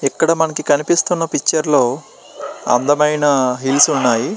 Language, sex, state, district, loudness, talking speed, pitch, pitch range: Telugu, male, Andhra Pradesh, Srikakulam, -15 LUFS, 110 wpm, 150 Hz, 140-160 Hz